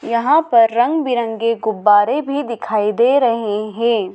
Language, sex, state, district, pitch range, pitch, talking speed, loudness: Hindi, female, Madhya Pradesh, Dhar, 220-250 Hz, 230 Hz, 145 wpm, -16 LUFS